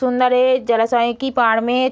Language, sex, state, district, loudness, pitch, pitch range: Hindi, female, Uttar Pradesh, Deoria, -16 LUFS, 250 Hz, 235-255 Hz